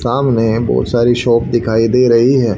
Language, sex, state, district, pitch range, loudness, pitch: Hindi, male, Haryana, Rohtak, 115-125 Hz, -13 LUFS, 120 Hz